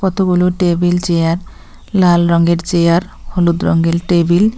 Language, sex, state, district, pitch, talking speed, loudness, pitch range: Bengali, female, West Bengal, Cooch Behar, 175 Hz, 130 wpm, -14 LUFS, 170-180 Hz